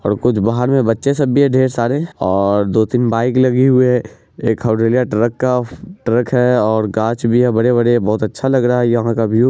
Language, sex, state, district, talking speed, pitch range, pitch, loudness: Hindi, male, Bihar, Araria, 185 wpm, 115-130 Hz, 120 Hz, -15 LUFS